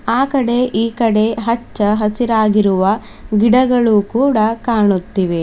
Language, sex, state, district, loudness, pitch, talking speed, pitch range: Kannada, female, Karnataka, Bidar, -15 LUFS, 220 Hz, 100 wpm, 210-235 Hz